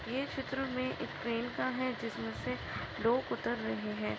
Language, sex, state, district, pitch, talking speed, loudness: Hindi, female, Chhattisgarh, Bastar, 230 Hz, 200 wpm, -36 LUFS